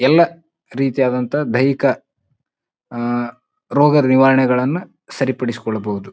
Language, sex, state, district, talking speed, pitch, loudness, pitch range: Kannada, male, Karnataka, Bijapur, 70 wpm, 130 Hz, -17 LUFS, 120-145 Hz